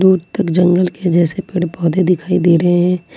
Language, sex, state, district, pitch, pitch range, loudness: Hindi, female, Jharkhand, Ranchi, 180 Hz, 175-185 Hz, -14 LUFS